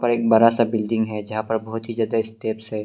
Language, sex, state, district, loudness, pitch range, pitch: Hindi, male, Arunachal Pradesh, Longding, -21 LUFS, 110-115 Hz, 110 Hz